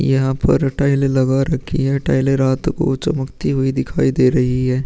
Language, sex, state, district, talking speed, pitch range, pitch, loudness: Hindi, male, Uttar Pradesh, Muzaffarnagar, 195 wpm, 130-140 Hz, 135 Hz, -17 LUFS